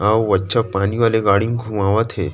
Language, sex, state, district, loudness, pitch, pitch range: Chhattisgarhi, male, Chhattisgarh, Rajnandgaon, -17 LUFS, 110 Hz, 100-115 Hz